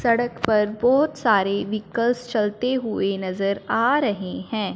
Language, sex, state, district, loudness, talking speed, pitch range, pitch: Hindi, female, Punjab, Fazilka, -22 LUFS, 140 wpm, 200-245 Hz, 220 Hz